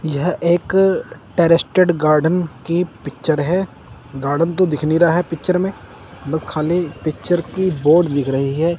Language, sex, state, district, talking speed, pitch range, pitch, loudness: Hindi, male, Chandigarh, Chandigarh, 155 wpm, 150-180 Hz, 165 Hz, -17 LUFS